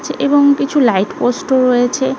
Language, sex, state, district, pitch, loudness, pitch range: Bengali, female, West Bengal, North 24 Parganas, 265 Hz, -13 LUFS, 245-285 Hz